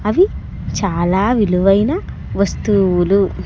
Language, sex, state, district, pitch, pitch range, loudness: Telugu, male, Andhra Pradesh, Sri Satya Sai, 200 Hz, 190-215 Hz, -16 LUFS